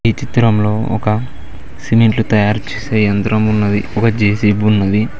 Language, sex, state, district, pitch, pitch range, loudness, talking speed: Telugu, male, Telangana, Mahabubabad, 105 Hz, 105-110 Hz, -14 LUFS, 125 wpm